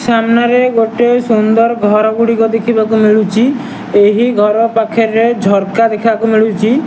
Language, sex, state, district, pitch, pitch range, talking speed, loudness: Odia, male, Odisha, Nuapada, 225 Hz, 215-235 Hz, 115 wpm, -11 LUFS